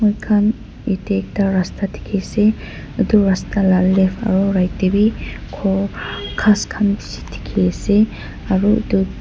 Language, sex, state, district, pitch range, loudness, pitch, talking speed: Nagamese, female, Nagaland, Dimapur, 185-210 Hz, -18 LUFS, 195 Hz, 130 wpm